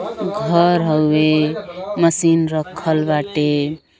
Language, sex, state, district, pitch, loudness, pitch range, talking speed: Bhojpuri, female, Uttar Pradesh, Gorakhpur, 160 Hz, -17 LUFS, 155-170 Hz, 90 wpm